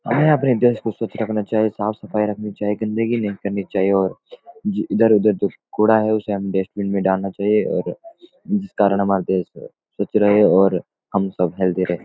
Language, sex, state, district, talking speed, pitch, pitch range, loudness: Hindi, male, Uttarakhand, Uttarkashi, 185 wpm, 105 Hz, 100-110 Hz, -19 LUFS